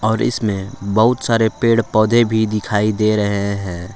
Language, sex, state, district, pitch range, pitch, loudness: Hindi, male, Jharkhand, Palamu, 100-115 Hz, 110 Hz, -17 LUFS